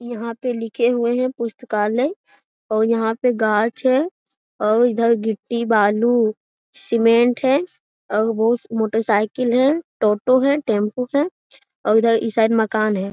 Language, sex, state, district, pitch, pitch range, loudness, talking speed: Hindi, female, Bihar, Jamui, 230 Hz, 220-250 Hz, -19 LUFS, 140 wpm